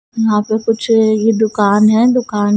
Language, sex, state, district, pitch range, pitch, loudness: Hindi, female, Punjab, Kapurthala, 210-225 Hz, 220 Hz, -13 LUFS